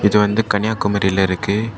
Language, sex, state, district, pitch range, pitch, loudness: Tamil, male, Tamil Nadu, Kanyakumari, 100-110 Hz, 105 Hz, -17 LUFS